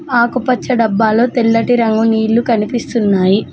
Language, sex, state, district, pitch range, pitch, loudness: Telugu, female, Telangana, Mahabubabad, 220-240 Hz, 230 Hz, -13 LUFS